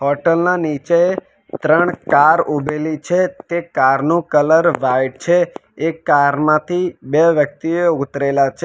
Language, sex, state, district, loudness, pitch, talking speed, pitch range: Gujarati, male, Gujarat, Valsad, -16 LUFS, 155 Hz, 140 wpm, 140-170 Hz